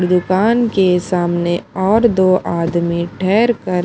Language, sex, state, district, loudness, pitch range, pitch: Hindi, female, Maharashtra, Mumbai Suburban, -15 LUFS, 175-195 Hz, 185 Hz